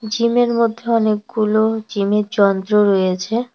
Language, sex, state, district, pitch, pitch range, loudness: Bengali, female, West Bengal, Cooch Behar, 215 Hz, 205-230 Hz, -17 LUFS